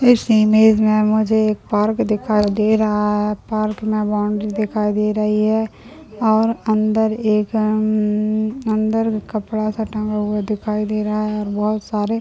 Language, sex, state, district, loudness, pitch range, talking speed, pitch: Hindi, male, Chhattisgarh, Raigarh, -18 LUFS, 210-220 Hz, 155 wpm, 215 Hz